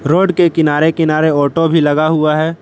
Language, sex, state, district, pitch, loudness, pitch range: Hindi, male, Jharkhand, Palamu, 160 Hz, -13 LUFS, 155-165 Hz